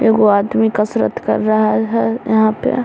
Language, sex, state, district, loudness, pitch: Hindi, female, Bihar, Samastipur, -15 LUFS, 210 Hz